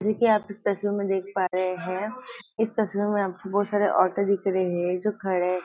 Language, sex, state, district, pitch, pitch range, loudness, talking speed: Hindi, female, Maharashtra, Nagpur, 200 Hz, 185-205 Hz, -25 LUFS, 235 wpm